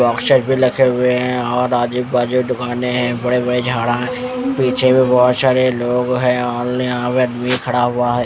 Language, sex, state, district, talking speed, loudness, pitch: Hindi, male, Odisha, Khordha, 205 wpm, -16 LUFS, 125 Hz